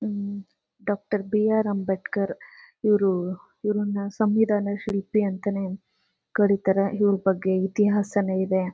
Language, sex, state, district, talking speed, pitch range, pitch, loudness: Kannada, female, Karnataka, Chamarajanagar, 90 wpm, 195-210 Hz, 200 Hz, -25 LUFS